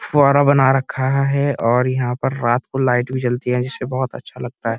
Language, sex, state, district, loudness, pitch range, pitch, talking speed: Hindi, male, Uttar Pradesh, Muzaffarnagar, -18 LUFS, 125-135 Hz, 130 Hz, 225 wpm